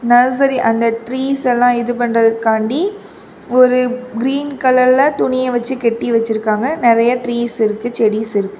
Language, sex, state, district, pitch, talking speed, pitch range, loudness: Tamil, female, Tamil Nadu, Kanyakumari, 240 Hz, 135 wpm, 230-255 Hz, -15 LUFS